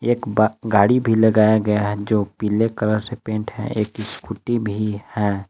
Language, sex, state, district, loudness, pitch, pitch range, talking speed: Hindi, male, Jharkhand, Palamu, -20 LUFS, 110 Hz, 105-110 Hz, 185 wpm